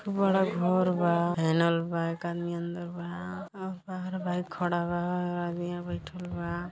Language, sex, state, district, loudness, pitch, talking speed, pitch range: Hindi, female, Uttar Pradesh, Gorakhpur, -30 LUFS, 175 Hz, 150 wpm, 170-185 Hz